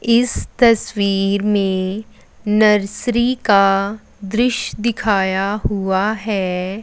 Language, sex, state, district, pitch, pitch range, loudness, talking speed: Hindi, female, Punjab, Fazilka, 210 Hz, 195-225 Hz, -17 LUFS, 80 wpm